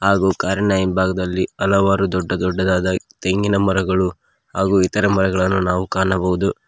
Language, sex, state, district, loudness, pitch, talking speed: Kannada, male, Karnataka, Koppal, -18 LUFS, 95 Hz, 115 wpm